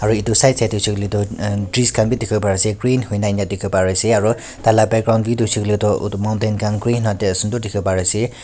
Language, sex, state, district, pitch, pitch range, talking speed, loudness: Nagamese, male, Nagaland, Kohima, 110 Hz, 105-115 Hz, 250 wpm, -17 LUFS